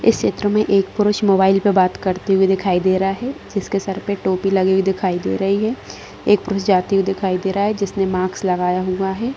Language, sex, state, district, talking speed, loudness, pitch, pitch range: Hindi, female, Bihar, Madhepura, 230 wpm, -18 LUFS, 195 Hz, 185-200 Hz